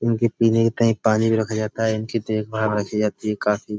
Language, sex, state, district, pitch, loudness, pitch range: Hindi, male, Uttar Pradesh, Budaun, 110 Hz, -21 LUFS, 105-115 Hz